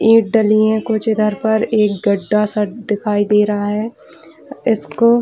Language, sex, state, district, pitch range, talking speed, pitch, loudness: Hindi, female, Bihar, Kishanganj, 210-225 Hz, 150 wpm, 215 Hz, -16 LUFS